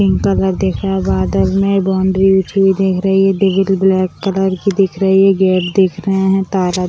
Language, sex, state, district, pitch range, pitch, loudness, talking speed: Hindi, female, Bihar, Sitamarhi, 180-195 Hz, 190 Hz, -14 LUFS, 220 wpm